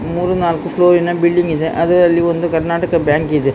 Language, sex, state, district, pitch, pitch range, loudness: Kannada, female, Karnataka, Dakshina Kannada, 170 Hz, 160-175 Hz, -14 LUFS